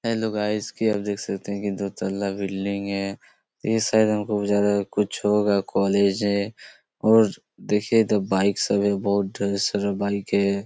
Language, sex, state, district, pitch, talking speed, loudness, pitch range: Hindi, male, Chhattisgarh, Korba, 100 Hz, 170 wpm, -23 LUFS, 100-105 Hz